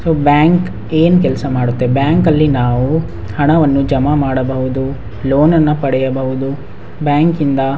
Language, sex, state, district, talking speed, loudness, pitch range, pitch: Kannada, male, Karnataka, Raichur, 110 wpm, -13 LUFS, 130-150 Hz, 135 Hz